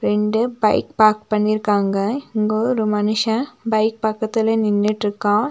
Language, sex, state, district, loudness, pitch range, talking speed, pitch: Tamil, female, Tamil Nadu, Nilgiris, -19 LUFS, 210-225 Hz, 110 wpm, 215 Hz